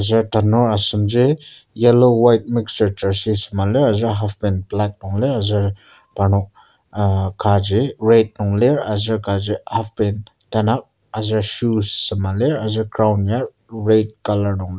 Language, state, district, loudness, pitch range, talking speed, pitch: Ao, Nagaland, Kohima, -17 LUFS, 100-115 Hz, 150 wpm, 110 Hz